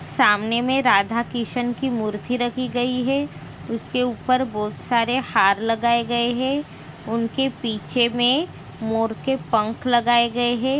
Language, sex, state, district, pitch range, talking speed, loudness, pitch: Hindi, female, Bihar, Araria, 225-255 Hz, 145 wpm, -21 LUFS, 240 Hz